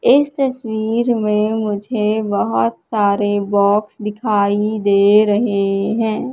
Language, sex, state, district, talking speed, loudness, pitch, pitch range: Hindi, female, Madhya Pradesh, Katni, 105 wpm, -17 LUFS, 210 Hz, 205-220 Hz